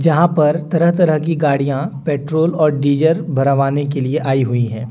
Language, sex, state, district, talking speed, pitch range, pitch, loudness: Hindi, male, Jharkhand, Deoghar, 185 wpm, 140-165 Hz, 150 Hz, -16 LUFS